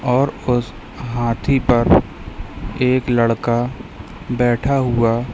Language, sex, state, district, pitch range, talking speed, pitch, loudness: Hindi, female, Madhya Pradesh, Katni, 120-125 Hz, 90 wpm, 120 Hz, -18 LUFS